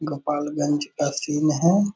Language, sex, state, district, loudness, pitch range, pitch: Hindi, male, Bihar, Purnia, -23 LUFS, 145-155 Hz, 150 Hz